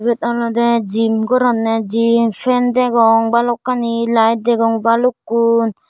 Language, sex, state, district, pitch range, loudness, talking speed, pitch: Chakma, female, Tripura, Dhalai, 225-240 Hz, -15 LUFS, 110 wpm, 230 Hz